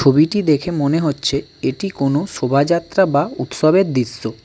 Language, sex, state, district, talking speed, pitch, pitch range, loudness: Bengali, male, West Bengal, Cooch Behar, 135 wpm, 150 Hz, 140-170 Hz, -17 LUFS